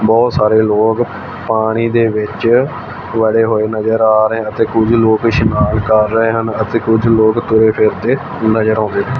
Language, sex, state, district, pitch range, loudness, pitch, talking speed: Punjabi, male, Punjab, Fazilka, 110-115 Hz, -13 LUFS, 110 Hz, 170 wpm